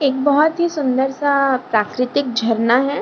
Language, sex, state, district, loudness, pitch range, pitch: Hindi, female, Bihar, Lakhisarai, -17 LUFS, 250-285 Hz, 265 Hz